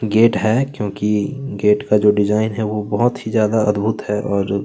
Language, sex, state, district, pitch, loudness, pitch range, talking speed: Hindi, male, Chhattisgarh, Kabirdham, 105 Hz, -18 LUFS, 105-110 Hz, 195 wpm